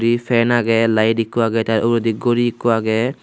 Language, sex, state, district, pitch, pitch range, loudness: Chakma, male, Tripura, Unakoti, 115 Hz, 115-120 Hz, -17 LUFS